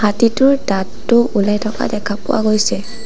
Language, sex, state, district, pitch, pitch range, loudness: Assamese, female, Assam, Sonitpur, 215 Hz, 205-235 Hz, -16 LUFS